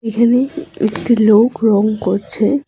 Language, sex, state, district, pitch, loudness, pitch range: Bengali, female, West Bengal, Alipurduar, 225 Hz, -14 LUFS, 215-250 Hz